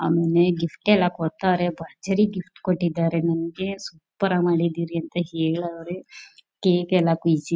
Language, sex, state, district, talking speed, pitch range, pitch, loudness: Kannada, female, Karnataka, Mysore, 125 wpm, 165-180 Hz, 170 Hz, -23 LUFS